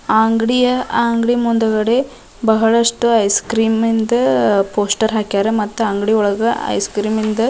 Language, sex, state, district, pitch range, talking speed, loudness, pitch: Kannada, female, Karnataka, Dharwad, 215-235 Hz, 130 wpm, -15 LUFS, 225 Hz